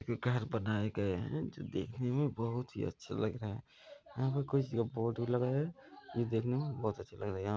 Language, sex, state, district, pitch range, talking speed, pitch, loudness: Hindi, male, Bihar, Gopalganj, 110-130 Hz, 260 wpm, 120 Hz, -37 LUFS